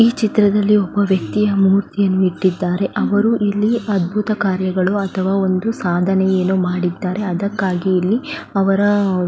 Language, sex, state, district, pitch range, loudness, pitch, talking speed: Kannada, female, Karnataka, Belgaum, 185-205 Hz, -17 LUFS, 195 Hz, 115 wpm